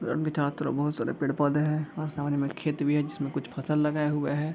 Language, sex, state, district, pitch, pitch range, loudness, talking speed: Hindi, male, Bihar, East Champaran, 150 Hz, 145-150 Hz, -29 LUFS, 210 wpm